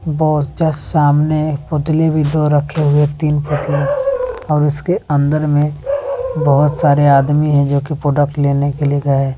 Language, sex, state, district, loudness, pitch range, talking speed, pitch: Hindi, male, Bihar, West Champaran, -15 LUFS, 145-155 Hz, 160 wpm, 150 Hz